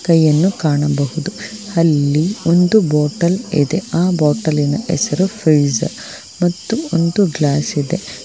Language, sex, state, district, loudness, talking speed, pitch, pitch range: Kannada, female, Karnataka, Bangalore, -16 LUFS, 100 wpm, 165 Hz, 150-185 Hz